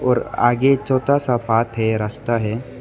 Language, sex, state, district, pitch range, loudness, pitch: Hindi, male, Arunachal Pradesh, Lower Dibang Valley, 115-130 Hz, -19 LUFS, 120 Hz